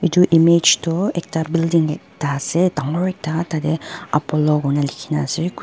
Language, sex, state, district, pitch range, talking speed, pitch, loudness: Nagamese, female, Nagaland, Dimapur, 150-175 Hz, 115 wpm, 165 Hz, -18 LUFS